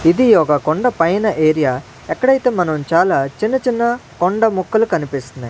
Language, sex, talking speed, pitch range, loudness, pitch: Telugu, male, 140 wpm, 150-225 Hz, -16 LUFS, 170 Hz